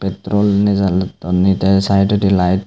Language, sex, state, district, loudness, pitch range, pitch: Chakma, male, Tripura, Unakoti, -15 LUFS, 95-100 Hz, 95 Hz